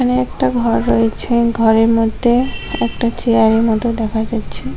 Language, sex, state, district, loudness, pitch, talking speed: Bengali, female, West Bengal, Cooch Behar, -15 LUFS, 225 Hz, 140 wpm